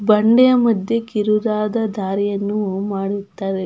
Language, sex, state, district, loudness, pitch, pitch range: Kannada, female, Karnataka, Dakshina Kannada, -18 LUFS, 210 Hz, 200-220 Hz